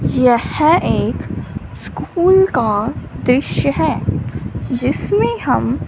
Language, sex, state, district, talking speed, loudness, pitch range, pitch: Hindi, female, Punjab, Fazilka, 80 wpm, -16 LUFS, 245-380 Hz, 305 Hz